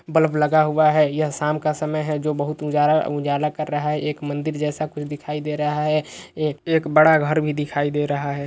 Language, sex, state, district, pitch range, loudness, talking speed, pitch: Hindi, male, Uttar Pradesh, Etah, 150-155 Hz, -21 LUFS, 220 wpm, 150 Hz